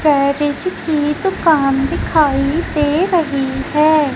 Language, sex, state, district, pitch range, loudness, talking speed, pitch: Hindi, female, Madhya Pradesh, Umaria, 280-320 Hz, -16 LUFS, 100 wpm, 295 Hz